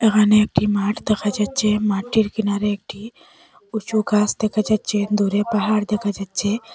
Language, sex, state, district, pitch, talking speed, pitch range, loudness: Bengali, female, Assam, Hailakandi, 210 Hz, 140 wpm, 205-215 Hz, -20 LUFS